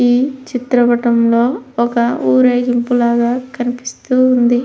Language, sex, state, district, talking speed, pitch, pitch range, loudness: Telugu, female, Andhra Pradesh, Krishna, 90 wpm, 245 Hz, 235-250 Hz, -14 LUFS